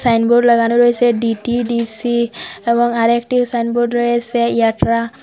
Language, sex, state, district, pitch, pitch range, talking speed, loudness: Bengali, female, Assam, Hailakandi, 235 Hz, 230-240 Hz, 105 wpm, -15 LUFS